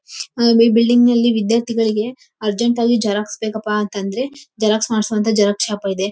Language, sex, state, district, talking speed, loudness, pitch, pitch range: Kannada, female, Karnataka, Bellary, 145 wpm, -17 LUFS, 220 Hz, 210-235 Hz